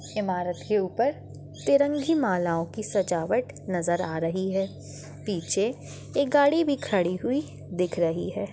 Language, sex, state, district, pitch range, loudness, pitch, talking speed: Hindi, female, Chhattisgarh, Bastar, 165-215 Hz, -26 LUFS, 185 Hz, 140 wpm